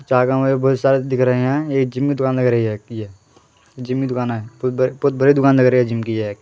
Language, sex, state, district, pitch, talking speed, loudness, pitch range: Hindi, male, Haryana, Charkhi Dadri, 130 Hz, 270 wpm, -17 LUFS, 115-135 Hz